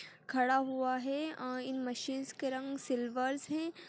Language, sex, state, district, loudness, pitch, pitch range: Hindi, female, Chhattisgarh, Kabirdham, -36 LUFS, 265 Hz, 255-275 Hz